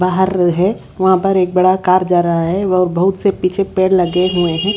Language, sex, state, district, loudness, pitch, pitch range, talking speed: Hindi, female, Haryana, Rohtak, -14 LUFS, 185 Hz, 180-190 Hz, 225 wpm